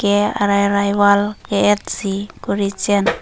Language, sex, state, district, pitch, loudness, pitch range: Karbi, female, Assam, Karbi Anglong, 200 Hz, -17 LUFS, 200-205 Hz